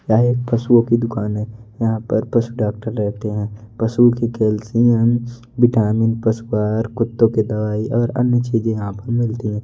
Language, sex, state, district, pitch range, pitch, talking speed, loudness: Hindi, male, Odisha, Nuapada, 110-120 Hz, 115 Hz, 170 wpm, -18 LUFS